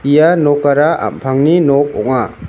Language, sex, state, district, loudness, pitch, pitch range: Garo, male, Meghalaya, West Garo Hills, -12 LUFS, 145 Hz, 130-150 Hz